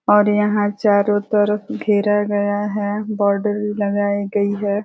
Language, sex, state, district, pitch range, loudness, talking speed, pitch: Hindi, female, Uttar Pradesh, Ghazipur, 205-210 Hz, -18 LUFS, 150 wpm, 205 Hz